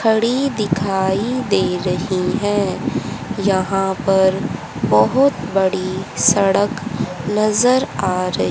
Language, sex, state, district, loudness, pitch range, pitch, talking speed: Hindi, female, Haryana, Charkhi Dadri, -18 LUFS, 185-210 Hz, 195 Hz, 90 wpm